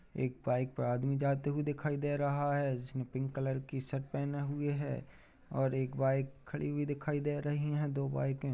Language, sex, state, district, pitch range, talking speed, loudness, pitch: Hindi, male, Uttar Pradesh, Budaun, 135-145 Hz, 215 wpm, -36 LUFS, 140 Hz